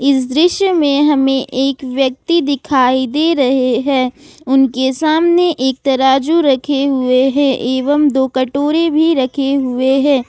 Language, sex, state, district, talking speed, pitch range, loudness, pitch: Hindi, female, Jharkhand, Ranchi, 140 wpm, 260-295 Hz, -14 LUFS, 275 Hz